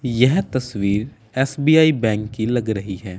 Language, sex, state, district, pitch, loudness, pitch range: Hindi, male, Chandigarh, Chandigarh, 115 Hz, -19 LUFS, 105-135 Hz